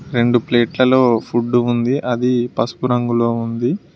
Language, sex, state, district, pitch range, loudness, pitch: Telugu, male, Telangana, Mahabubabad, 120-125 Hz, -17 LUFS, 120 Hz